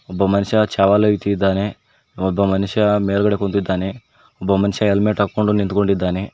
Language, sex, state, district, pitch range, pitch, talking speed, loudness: Kannada, male, Karnataka, Koppal, 95-105 Hz, 100 Hz, 125 wpm, -18 LUFS